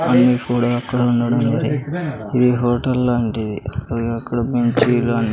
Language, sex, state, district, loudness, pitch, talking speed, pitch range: Telugu, male, Andhra Pradesh, Sri Satya Sai, -18 LUFS, 120 Hz, 125 wpm, 115-125 Hz